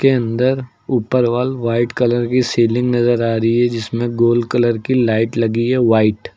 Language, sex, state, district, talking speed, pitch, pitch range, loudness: Hindi, male, Uttar Pradesh, Lucknow, 200 wpm, 120 Hz, 115-125 Hz, -16 LUFS